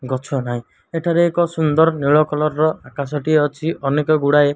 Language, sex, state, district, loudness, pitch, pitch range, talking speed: Odia, male, Odisha, Malkangiri, -18 LUFS, 150 Hz, 140-160 Hz, 185 wpm